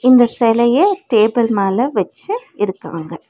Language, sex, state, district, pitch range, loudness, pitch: Tamil, female, Tamil Nadu, Nilgiris, 205-255 Hz, -15 LUFS, 235 Hz